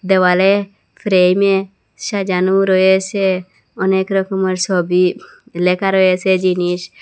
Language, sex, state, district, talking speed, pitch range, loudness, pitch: Bengali, female, Assam, Hailakandi, 85 wpm, 180-195 Hz, -15 LUFS, 190 Hz